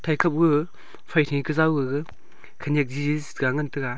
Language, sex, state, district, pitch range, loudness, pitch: Wancho, male, Arunachal Pradesh, Longding, 140-155 Hz, -24 LUFS, 150 Hz